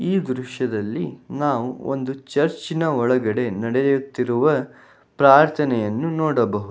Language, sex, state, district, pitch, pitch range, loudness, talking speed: Kannada, male, Karnataka, Bangalore, 130 Hz, 120-145 Hz, -21 LUFS, 80 wpm